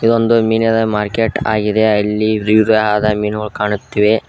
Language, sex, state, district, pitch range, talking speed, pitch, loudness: Kannada, male, Karnataka, Koppal, 105-110 Hz, 110 wpm, 110 Hz, -14 LUFS